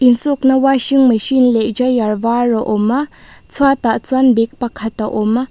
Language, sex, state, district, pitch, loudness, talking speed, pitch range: Mizo, female, Mizoram, Aizawl, 245 Hz, -14 LUFS, 165 wpm, 225-265 Hz